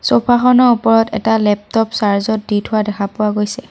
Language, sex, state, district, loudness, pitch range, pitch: Assamese, female, Assam, Sonitpur, -14 LUFS, 210-225 Hz, 220 Hz